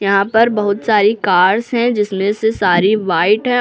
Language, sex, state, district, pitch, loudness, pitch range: Hindi, female, Uttar Pradesh, Lucknow, 210 Hz, -14 LUFS, 200-225 Hz